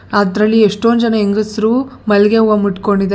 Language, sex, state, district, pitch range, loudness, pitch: Kannada, female, Karnataka, Bangalore, 205-225 Hz, -13 LUFS, 215 Hz